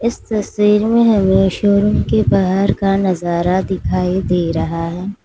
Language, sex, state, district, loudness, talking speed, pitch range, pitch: Hindi, female, Uttar Pradesh, Lalitpur, -15 LUFS, 150 wpm, 180-210 Hz, 190 Hz